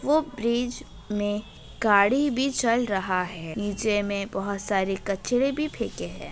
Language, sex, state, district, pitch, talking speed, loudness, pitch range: Hindi, female, Bihar, Begusarai, 210 Hz, 150 wpm, -26 LUFS, 195-250 Hz